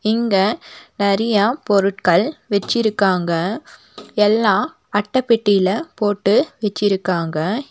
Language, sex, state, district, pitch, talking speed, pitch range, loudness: Tamil, female, Tamil Nadu, Nilgiris, 205 Hz, 70 wpm, 195-225 Hz, -18 LUFS